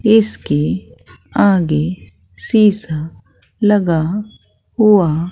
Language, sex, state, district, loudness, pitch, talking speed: Hindi, female, Bihar, Katihar, -15 LUFS, 170 Hz, 55 wpm